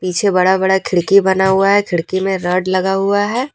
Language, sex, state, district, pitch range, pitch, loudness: Hindi, female, Jharkhand, Deoghar, 185-200 Hz, 190 Hz, -14 LUFS